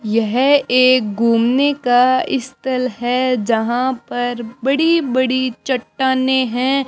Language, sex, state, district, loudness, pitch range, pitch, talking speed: Hindi, male, Rajasthan, Bikaner, -16 LUFS, 245-265 Hz, 255 Hz, 105 wpm